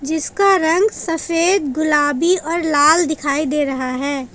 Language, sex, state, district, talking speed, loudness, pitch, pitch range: Hindi, female, Jharkhand, Palamu, 140 wpm, -16 LUFS, 310 Hz, 290-340 Hz